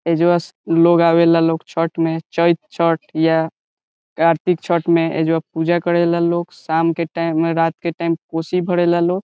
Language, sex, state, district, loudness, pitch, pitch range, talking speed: Bhojpuri, male, Bihar, Saran, -17 LUFS, 165 Hz, 165-170 Hz, 170 wpm